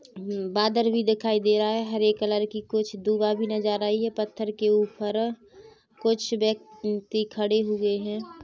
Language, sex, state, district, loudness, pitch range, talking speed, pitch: Hindi, female, Chhattisgarh, Rajnandgaon, -26 LUFS, 210-220 Hz, 170 wpm, 215 Hz